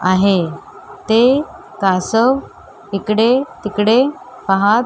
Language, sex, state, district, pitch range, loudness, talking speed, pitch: Marathi, female, Maharashtra, Mumbai Suburban, 195-260 Hz, -16 LUFS, 75 wpm, 220 Hz